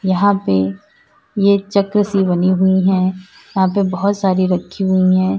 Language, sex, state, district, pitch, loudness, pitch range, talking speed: Hindi, female, Uttar Pradesh, Lalitpur, 190 Hz, -16 LUFS, 185-200 Hz, 165 wpm